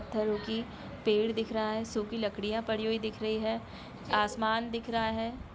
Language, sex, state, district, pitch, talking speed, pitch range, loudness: Hindi, female, Bihar, Samastipur, 220 Hz, 185 wpm, 215-225 Hz, -32 LUFS